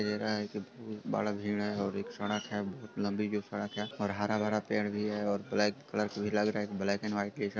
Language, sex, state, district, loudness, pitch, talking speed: Hindi, male, Bihar, Sitamarhi, -34 LUFS, 105 Hz, 275 wpm